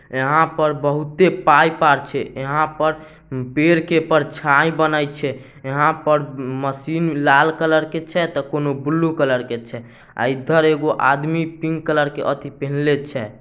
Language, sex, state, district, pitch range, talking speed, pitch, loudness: Maithili, male, Bihar, Samastipur, 140-160 Hz, 165 wpm, 150 Hz, -18 LUFS